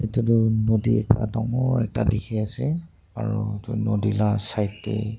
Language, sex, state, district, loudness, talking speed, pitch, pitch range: Nagamese, male, Nagaland, Dimapur, -24 LUFS, 150 wpm, 110 Hz, 105-115 Hz